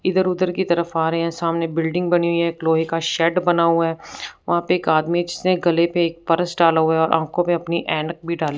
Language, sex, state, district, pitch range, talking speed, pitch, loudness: Hindi, female, Punjab, Fazilka, 165-175 Hz, 260 wpm, 170 Hz, -19 LUFS